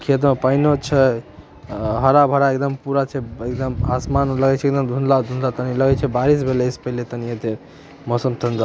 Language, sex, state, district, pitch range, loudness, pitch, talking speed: Maithili, male, Bihar, Samastipur, 125-140 Hz, -19 LUFS, 130 Hz, 195 wpm